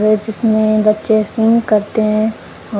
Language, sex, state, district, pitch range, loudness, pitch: Hindi, male, Punjab, Kapurthala, 215-220 Hz, -14 LUFS, 215 Hz